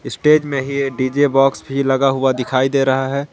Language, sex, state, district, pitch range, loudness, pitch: Hindi, male, Jharkhand, Garhwa, 130-140 Hz, -16 LUFS, 135 Hz